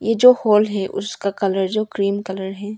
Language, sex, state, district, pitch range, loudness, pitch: Hindi, female, Arunachal Pradesh, Longding, 195-215 Hz, -19 LUFS, 200 Hz